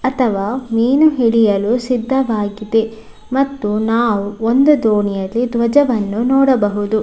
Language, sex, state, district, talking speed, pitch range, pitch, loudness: Kannada, female, Karnataka, Dakshina Kannada, 95 wpm, 215-260 Hz, 230 Hz, -15 LUFS